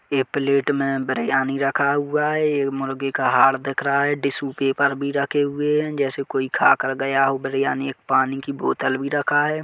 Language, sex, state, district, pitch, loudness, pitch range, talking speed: Hindi, male, Chhattisgarh, Kabirdham, 140 Hz, -21 LUFS, 135-145 Hz, 210 wpm